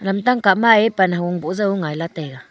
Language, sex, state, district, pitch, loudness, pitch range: Wancho, female, Arunachal Pradesh, Longding, 195 Hz, -17 LUFS, 165-210 Hz